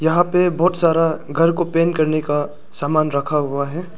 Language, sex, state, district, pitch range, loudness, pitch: Hindi, male, Arunachal Pradesh, Lower Dibang Valley, 150-170 Hz, -18 LUFS, 160 Hz